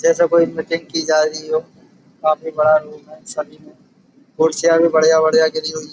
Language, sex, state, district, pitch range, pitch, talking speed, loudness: Hindi, male, Uttar Pradesh, Budaun, 155-165 Hz, 160 Hz, 160 wpm, -16 LUFS